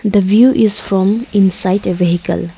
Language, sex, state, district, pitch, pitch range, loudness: English, female, Arunachal Pradesh, Lower Dibang Valley, 200 Hz, 180-215 Hz, -13 LUFS